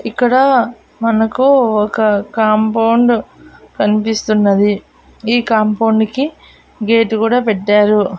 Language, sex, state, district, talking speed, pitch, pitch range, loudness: Telugu, female, Andhra Pradesh, Annamaya, 80 wpm, 220 Hz, 210-235 Hz, -13 LUFS